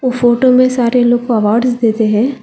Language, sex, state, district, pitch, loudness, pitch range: Hindi, female, Telangana, Hyderabad, 240 Hz, -12 LUFS, 230-255 Hz